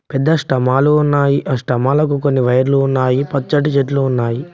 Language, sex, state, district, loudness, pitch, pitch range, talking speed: Telugu, male, Telangana, Mahabubabad, -15 LUFS, 135 Hz, 130-145 Hz, 145 wpm